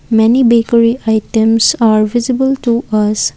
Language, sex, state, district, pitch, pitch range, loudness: English, female, Assam, Kamrup Metropolitan, 230 Hz, 220-240 Hz, -12 LUFS